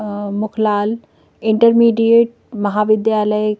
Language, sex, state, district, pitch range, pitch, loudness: Hindi, female, Madhya Pradesh, Bhopal, 210-230 Hz, 215 Hz, -15 LUFS